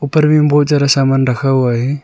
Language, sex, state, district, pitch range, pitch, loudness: Hindi, male, Arunachal Pradesh, Lower Dibang Valley, 135-145 Hz, 140 Hz, -12 LUFS